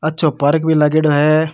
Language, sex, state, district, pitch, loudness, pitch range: Rajasthani, male, Rajasthan, Nagaur, 155 Hz, -14 LUFS, 150-155 Hz